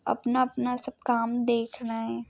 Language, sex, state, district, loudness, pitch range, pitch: Hindi, female, Maharashtra, Pune, -28 LUFS, 230-250 Hz, 240 Hz